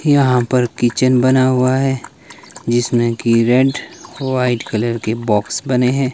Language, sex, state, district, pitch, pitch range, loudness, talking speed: Hindi, male, Himachal Pradesh, Shimla, 125 Hz, 120-130 Hz, -16 LUFS, 145 wpm